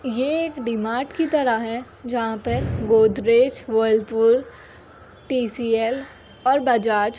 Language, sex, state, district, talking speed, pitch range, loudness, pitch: Hindi, female, Uttar Pradesh, Jyotiba Phule Nagar, 115 wpm, 225-255 Hz, -21 LUFS, 235 Hz